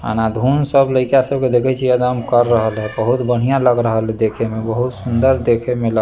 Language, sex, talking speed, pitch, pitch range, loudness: Bajjika, male, 240 wpm, 120 Hz, 115-130 Hz, -16 LUFS